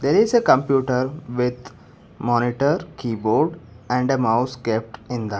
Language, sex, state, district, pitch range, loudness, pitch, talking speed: English, male, Karnataka, Bangalore, 115-135 Hz, -21 LUFS, 125 Hz, 155 wpm